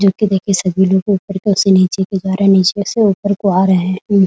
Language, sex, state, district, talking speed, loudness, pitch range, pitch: Hindi, female, Bihar, Muzaffarpur, 295 wpm, -14 LUFS, 190-200 Hz, 195 Hz